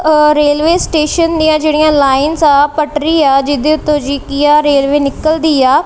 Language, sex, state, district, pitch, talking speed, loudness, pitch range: Punjabi, female, Punjab, Kapurthala, 300 Hz, 165 wpm, -11 LUFS, 285-310 Hz